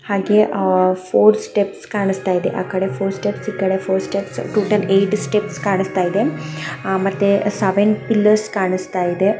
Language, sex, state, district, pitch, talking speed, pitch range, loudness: Kannada, female, Karnataka, Chamarajanagar, 195 Hz, 140 wpm, 185-205 Hz, -18 LUFS